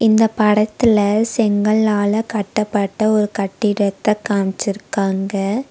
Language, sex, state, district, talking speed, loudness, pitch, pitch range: Tamil, female, Tamil Nadu, Nilgiris, 75 wpm, -17 LUFS, 210 Hz, 200-220 Hz